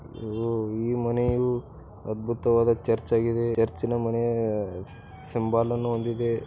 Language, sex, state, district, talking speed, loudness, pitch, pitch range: Kannada, male, Karnataka, Bijapur, 85 wpm, -26 LUFS, 115 Hz, 115-120 Hz